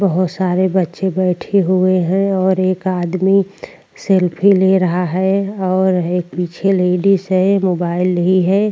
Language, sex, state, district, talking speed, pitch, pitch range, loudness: Hindi, female, Uttarakhand, Tehri Garhwal, 145 wpm, 185 Hz, 180-190 Hz, -15 LUFS